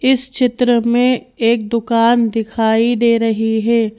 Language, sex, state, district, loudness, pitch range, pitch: Hindi, female, Madhya Pradesh, Bhopal, -15 LUFS, 225-245 Hz, 235 Hz